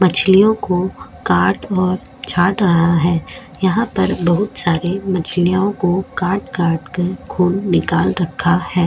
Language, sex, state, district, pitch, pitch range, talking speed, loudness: Hindi, female, Goa, North and South Goa, 180 Hz, 175-190 Hz, 135 wpm, -16 LUFS